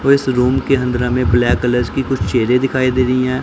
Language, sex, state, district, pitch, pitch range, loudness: Hindi, male, Punjab, Pathankot, 125 Hz, 125-130 Hz, -15 LUFS